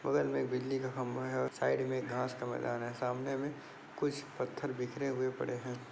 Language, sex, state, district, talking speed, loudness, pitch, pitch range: Hindi, male, Chhattisgarh, Bastar, 220 wpm, -37 LUFS, 130 Hz, 125-135 Hz